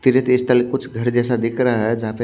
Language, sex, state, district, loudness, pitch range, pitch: Hindi, male, Haryana, Jhajjar, -18 LUFS, 115-125 Hz, 120 Hz